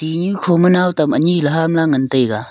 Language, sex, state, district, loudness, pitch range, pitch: Wancho, male, Arunachal Pradesh, Longding, -15 LUFS, 145-175 Hz, 165 Hz